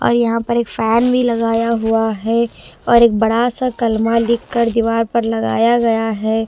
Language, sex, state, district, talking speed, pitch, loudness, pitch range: Hindi, female, Bihar, West Champaran, 185 wpm, 230 Hz, -16 LUFS, 225-235 Hz